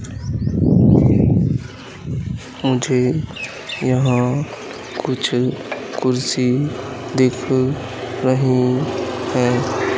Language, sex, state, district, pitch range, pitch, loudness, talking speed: Hindi, male, Madhya Pradesh, Katni, 125-130 Hz, 130 Hz, -19 LUFS, 40 wpm